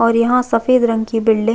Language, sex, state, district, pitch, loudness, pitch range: Hindi, female, Chhattisgarh, Jashpur, 230 Hz, -15 LUFS, 225-240 Hz